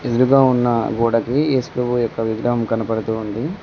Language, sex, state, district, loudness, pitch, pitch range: Telugu, male, Telangana, Mahabubabad, -18 LUFS, 120 Hz, 115-130 Hz